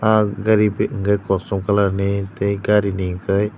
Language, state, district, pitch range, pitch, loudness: Kokborok, Tripura, Dhalai, 100-105 Hz, 100 Hz, -19 LUFS